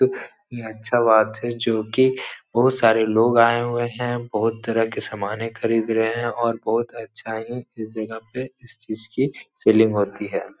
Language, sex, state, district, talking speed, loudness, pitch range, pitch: Hindi, male, Bihar, Supaul, 180 wpm, -21 LUFS, 110-120 Hz, 115 Hz